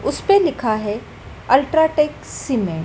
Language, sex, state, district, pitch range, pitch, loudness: Hindi, female, Madhya Pradesh, Dhar, 215-315 Hz, 270 Hz, -18 LUFS